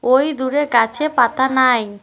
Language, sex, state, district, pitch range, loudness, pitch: Bengali, female, West Bengal, Cooch Behar, 235-275 Hz, -16 LUFS, 260 Hz